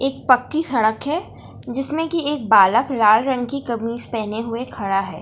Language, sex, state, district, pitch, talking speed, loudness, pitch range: Hindi, female, Bihar, Gaya, 245 Hz, 185 wpm, -19 LUFS, 220-275 Hz